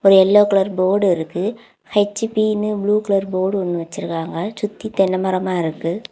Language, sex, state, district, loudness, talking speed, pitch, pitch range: Tamil, female, Tamil Nadu, Kanyakumari, -19 LUFS, 155 wpm, 195 Hz, 185-210 Hz